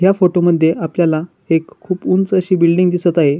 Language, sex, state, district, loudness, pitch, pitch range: Marathi, male, Maharashtra, Chandrapur, -15 LUFS, 175 Hz, 165-185 Hz